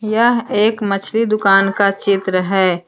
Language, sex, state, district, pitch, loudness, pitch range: Hindi, female, Jharkhand, Deoghar, 200 Hz, -15 LUFS, 195-220 Hz